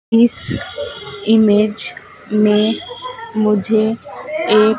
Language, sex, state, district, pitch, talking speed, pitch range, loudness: Hindi, female, Madhya Pradesh, Dhar, 220 Hz, 65 wpm, 210-230 Hz, -16 LUFS